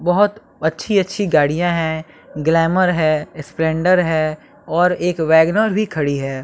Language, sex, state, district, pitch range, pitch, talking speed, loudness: Hindi, male, Bihar, West Champaran, 155-180 Hz, 165 Hz, 140 wpm, -17 LUFS